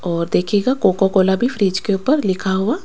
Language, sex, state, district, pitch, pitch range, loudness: Hindi, female, Rajasthan, Jaipur, 195 Hz, 190-235 Hz, -17 LUFS